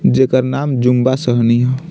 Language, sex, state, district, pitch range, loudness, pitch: Bhojpuri, male, Bihar, Muzaffarpur, 125-130 Hz, -14 LUFS, 130 Hz